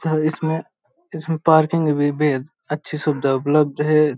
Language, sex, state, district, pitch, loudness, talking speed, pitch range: Hindi, male, Uttar Pradesh, Hamirpur, 155 Hz, -20 LUFS, 145 wpm, 145-160 Hz